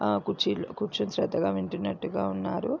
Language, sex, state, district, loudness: Telugu, female, Andhra Pradesh, Visakhapatnam, -29 LUFS